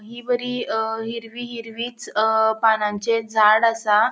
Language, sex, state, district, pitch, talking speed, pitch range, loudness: Konkani, female, Goa, North and South Goa, 225 Hz, 130 wpm, 220-235 Hz, -21 LUFS